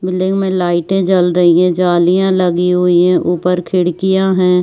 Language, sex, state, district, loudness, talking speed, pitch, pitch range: Hindi, female, Bihar, Saharsa, -13 LUFS, 170 wpm, 180 Hz, 175-185 Hz